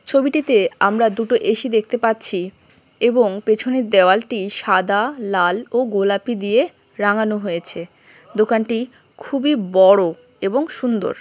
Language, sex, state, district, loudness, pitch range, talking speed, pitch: Bengali, female, West Bengal, Kolkata, -18 LUFS, 195-245 Hz, 110 wpm, 220 Hz